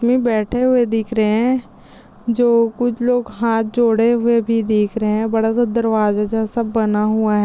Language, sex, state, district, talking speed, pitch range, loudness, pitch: Hindi, female, Maharashtra, Sindhudurg, 175 wpm, 220-240 Hz, -17 LUFS, 225 Hz